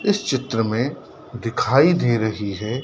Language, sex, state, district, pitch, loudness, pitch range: Hindi, male, Madhya Pradesh, Dhar, 120 Hz, -21 LUFS, 110-130 Hz